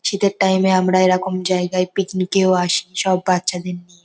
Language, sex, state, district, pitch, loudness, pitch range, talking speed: Bengali, female, West Bengal, North 24 Parganas, 185 Hz, -18 LUFS, 180-190 Hz, 195 wpm